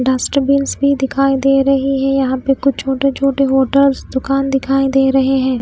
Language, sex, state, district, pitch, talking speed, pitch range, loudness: Hindi, female, Punjab, Pathankot, 270 Hz, 180 wpm, 265-275 Hz, -14 LUFS